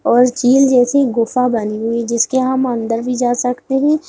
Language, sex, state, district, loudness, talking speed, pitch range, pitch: Hindi, female, Bihar, Muzaffarpur, -15 LUFS, 190 wpm, 235-260 Hz, 250 Hz